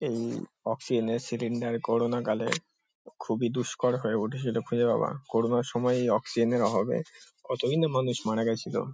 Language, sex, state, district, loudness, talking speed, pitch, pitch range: Bengali, male, West Bengal, Kolkata, -29 LUFS, 155 wpm, 120 Hz, 115-125 Hz